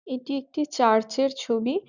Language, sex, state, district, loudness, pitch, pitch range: Bengali, female, West Bengal, Jhargram, -25 LUFS, 270 Hz, 235-280 Hz